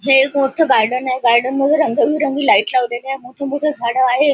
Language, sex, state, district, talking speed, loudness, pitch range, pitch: Marathi, female, Maharashtra, Nagpur, 205 wpm, -15 LUFS, 250-285 Hz, 270 Hz